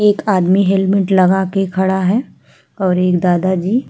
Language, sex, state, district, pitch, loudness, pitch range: Hindi, female, Uttar Pradesh, Hamirpur, 190 Hz, -14 LUFS, 185-195 Hz